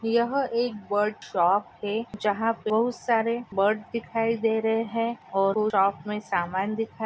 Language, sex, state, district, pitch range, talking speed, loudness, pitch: Hindi, female, Maharashtra, Pune, 205-230 Hz, 160 wpm, -26 LUFS, 220 Hz